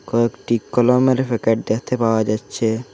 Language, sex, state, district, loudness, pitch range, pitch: Bengali, male, Assam, Hailakandi, -19 LUFS, 110-125 Hz, 115 Hz